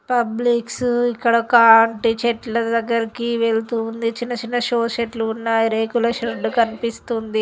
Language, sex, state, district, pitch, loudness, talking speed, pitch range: Telugu, female, Andhra Pradesh, Guntur, 230 Hz, -19 LUFS, 130 wpm, 225-235 Hz